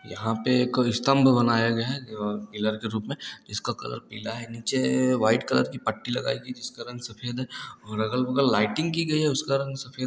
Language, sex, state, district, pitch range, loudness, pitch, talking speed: Hindi, male, Uttar Pradesh, Varanasi, 110-130 Hz, -26 LUFS, 120 Hz, 215 wpm